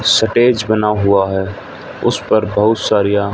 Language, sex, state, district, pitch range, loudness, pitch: Hindi, male, Haryana, Rohtak, 100-110 Hz, -14 LUFS, 105 Hz